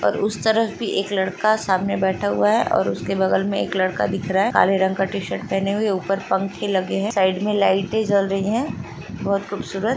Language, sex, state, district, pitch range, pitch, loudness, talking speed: Hindi, female, Uttar Pradesh, Jalaun, 190-205 Hz, 195 Hz, -21 LUFS, 225 wpm